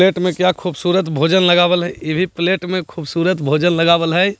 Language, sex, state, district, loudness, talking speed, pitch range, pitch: Hindi, male, Bihar, Jahanabad, -16 LUFS, 190 wpm, 170-185 Hz, 175 Hz